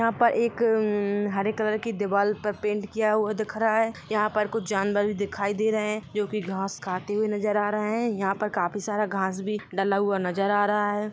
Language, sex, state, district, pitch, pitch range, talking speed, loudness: Hindi, female, Jharkhand, Jamtara, 210 Hz, 200-215 Hz, 225 wpm, -26 LUFS